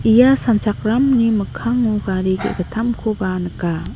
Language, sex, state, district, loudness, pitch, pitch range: Garo, female, Meghalaya, North Garo Hills, -18 LUFS, 220 Hz, 190-235 Hz